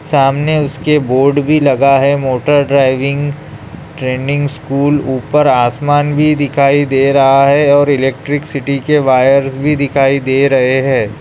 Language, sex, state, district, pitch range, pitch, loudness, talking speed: Hindi, male, Bihar, Muzaffarpur, 135-145 Hz, 140 Hz, -12 LUFS, 140 wpm